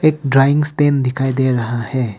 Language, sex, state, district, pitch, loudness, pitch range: Hindi, male, Arunachal Pradesh, Papum Pare, 135 Hz, -16 LUFS, 125-145 Hz